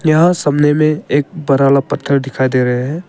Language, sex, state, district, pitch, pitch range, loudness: Hindi, male, Arunachal Pradesh, Papum Pare, 145 Hz, 135-155 Hz, -14 LUFS